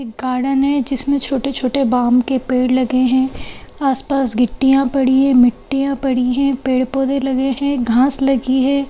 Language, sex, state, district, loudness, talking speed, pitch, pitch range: Hindi, female, Bihar, Madhepura, -15 LUFS, 155 wpm, 265 Hz, 255-275 Hz